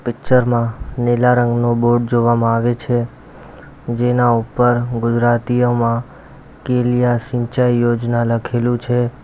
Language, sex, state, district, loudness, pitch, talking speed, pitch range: Gujarati, male, Gujarat, Valsad, -16 LUFS, 120 Hz, 105 wpm, 120-125 Hz